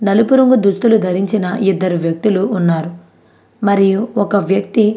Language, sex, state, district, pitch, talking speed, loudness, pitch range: Telugu, female, Andhra Pradesh, Anantapur, 200 Hz, 135 wpm, -14 LUFS, 185-215 Hz